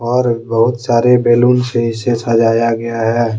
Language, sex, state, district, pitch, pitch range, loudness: Hindi, male, Jharkhand, Deoghar, 115 Hz, 115-120 Hz, -13 LUFS